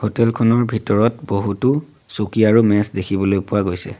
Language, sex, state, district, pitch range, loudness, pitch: Assamese, male, Assam, Sonitpur, 100-115 Hz, -18 LUFS, 105 Hz